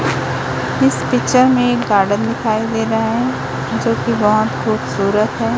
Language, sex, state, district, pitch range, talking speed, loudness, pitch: Hindi, female, Chhattisgarh, Raipur, 135-230 Hz, 140 wpm, -16 LUFS, 215 Hz